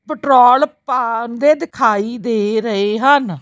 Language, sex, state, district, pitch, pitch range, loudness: Punjabi, female, Chandigarh, Chandigarh, 240 Hz, 220-285 Hz, -15 LUFS